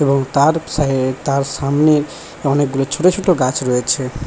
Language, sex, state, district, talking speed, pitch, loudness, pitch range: Bengali, male, West Bengal, Paschim Medinipur, 155 wpm, 140 Hz, -16 LUFS, 130-150 Hz